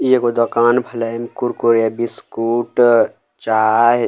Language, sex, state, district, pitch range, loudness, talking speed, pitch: Maithili, male, Bihar, Samastipur, 115-120 Hz, -16 LUFS, 115 wpm, 120 Hz